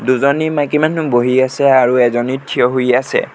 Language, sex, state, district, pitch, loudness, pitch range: Assamese, male, Assam, Sonitpur, 130 Hz, -14 LUFS, 125-145 Hz